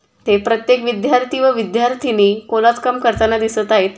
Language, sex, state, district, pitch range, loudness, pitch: Marathi, female, Maharashtra, Dhule, 220-250 Hz, -15 LUFS, 230 Hz